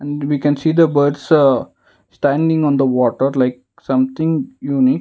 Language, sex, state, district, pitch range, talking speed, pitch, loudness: English, male, Karnataka, Bangalore, 130-155 Hz, 155 wpm, 145 Hz, -16 LUFS